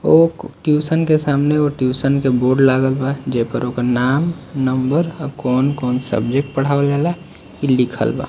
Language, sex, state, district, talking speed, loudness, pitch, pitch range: Bhojpuri, male, Bihar, Muzaffarpur, 160 wpm, -17 LUFS, 135 Hz, 130-150 Hz